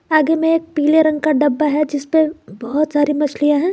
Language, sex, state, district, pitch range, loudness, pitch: Hindi, female, Jharkhand, Garhwa, 295-315 Hz, -16 LUFS, 300 Hz